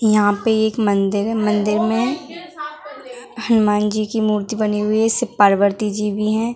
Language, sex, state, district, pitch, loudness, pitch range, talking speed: Hindi, female, Bihar, Muzaffarpur, 220 Hz, -18 LUFS, 210-235 Hz, 185 wpm